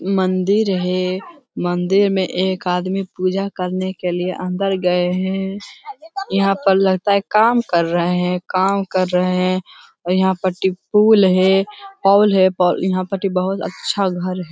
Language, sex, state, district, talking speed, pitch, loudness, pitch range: Hindi, male, Bihar, Jamui, 160 wpm, 190 Hz, -18 LUFS, 185-195 Hz